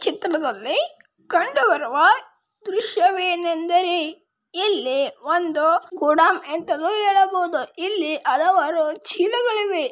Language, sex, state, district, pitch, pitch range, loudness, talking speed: Kannada, female, Karnataka, Raichur, 355 Hz, 325-390 Hz, -20 LUFS, 80 wpm